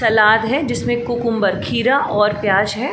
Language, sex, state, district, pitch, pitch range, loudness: Hindi, female, Uttar Pradesh, Jalaun, 225 Hz, 210-240 Hz, -17 LUFS